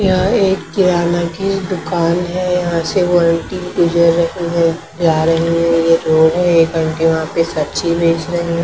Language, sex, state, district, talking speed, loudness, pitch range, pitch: Hindi, female, Maharashtra, Mumbai Suburban, 165 wpm, -15 LUFS, 165-180 Hz, 170 Hz